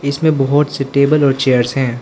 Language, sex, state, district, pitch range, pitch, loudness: Hindi, male, Arunachal Pradesh, Lower Dibang Valley, 135-145 Hz, 140 Hz, -14 LUFS